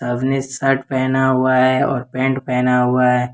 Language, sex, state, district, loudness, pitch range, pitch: Hindi, male, Jharkhand, Ranchi, -17 LUFS, 125-130 Hz, 130 Hz